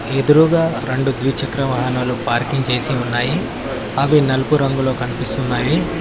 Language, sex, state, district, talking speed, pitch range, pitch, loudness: Telugu, male, Telangana, Mahabubabad, 110 wpm, 125-140 Hz, 135 Hz, -17 LUFS